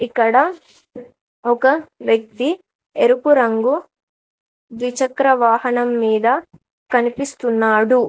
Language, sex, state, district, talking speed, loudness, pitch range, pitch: Telugu, female, Telangana, Mahabubabad, 65 wpm, -17 LUFS, 235-275 Hz, 250 Hz